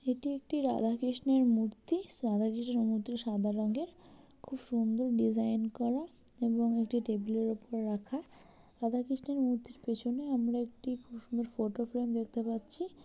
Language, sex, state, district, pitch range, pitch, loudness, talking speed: Bengali, female, West Bengal, Purulia, 225-255 Hz, 235 Hz, -34 LUFS, 145 wpm